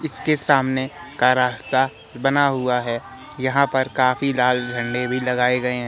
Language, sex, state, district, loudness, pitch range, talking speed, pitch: Hindi, male, Madhya Pradesh, Katni, -20 LUFS, 125-135 Hz, 165 wpm, 130 Hz